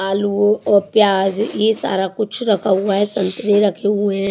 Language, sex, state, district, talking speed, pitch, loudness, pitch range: Hindi, female, Chhattisgarh, Raipur, 195 wpm, 205 Hz, -17 LUFS, 195-210 Hz